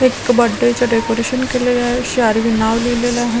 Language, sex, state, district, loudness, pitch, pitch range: Marathi, female, Maharashtra, Washim, -15 LUFS, 240 Hz, 230-245 Hz